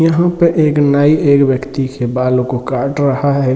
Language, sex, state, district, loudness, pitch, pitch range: Hindi, male, Chhattisgarh, Bilaspur, -13 LUFS, 140 Hz, 130-150 Hz